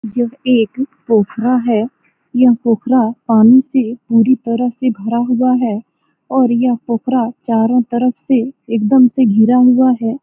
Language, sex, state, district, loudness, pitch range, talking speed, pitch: Hindi, female, Bihar, Saran, -14 LUFS, 230-255 Hz, 160 wpm, 245 Hz